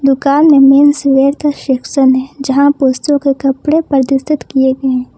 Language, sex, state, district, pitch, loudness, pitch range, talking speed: Hindi, female, Jharkhand, Ranchi, 275 Hz, -11 LUFS, 265-285 Hz, 175 wpm